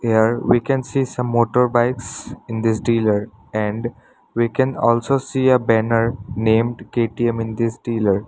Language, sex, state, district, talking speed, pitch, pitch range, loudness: English, male, Assam, Sonitpur, 160 wpm, 115 Hz, 110-125 Hz, -19 LUFS